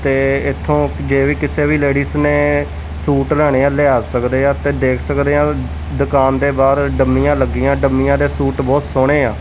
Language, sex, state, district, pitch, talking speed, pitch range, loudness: Punjabi, male, Punjab, Kapurthala, 140 Hz, 185 wpm, 130-140 Hz, -15 LUFS